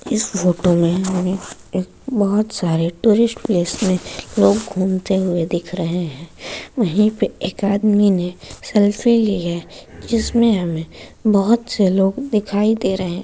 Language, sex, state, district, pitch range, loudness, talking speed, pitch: Hindi, female, Uttar Pradesh, Etah, 175-215 Hz, -18 LUFS, 145 wpm, 195 Hz